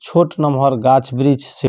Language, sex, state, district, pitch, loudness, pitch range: Maithili, male, Bihar, Samastipur, 140 Hz, -15 LUFS, 130-145 Hz